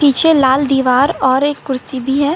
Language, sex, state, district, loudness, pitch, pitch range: Hindi, female, Uttar Pradesh, Lucknow, -14 LUFS, 270 Hz, 260-290 Hz